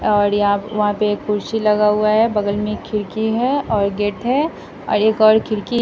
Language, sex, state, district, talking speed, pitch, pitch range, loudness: Hindi, female, Bihar, West Champaran, 215 wpm, 210 Hz, 205-220 Hz, -17 LUFS